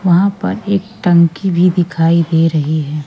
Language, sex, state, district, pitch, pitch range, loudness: Hindi, female, Madhya Pradesh, Katni, 175 Hz, 165-190 Hz, -14 LUFS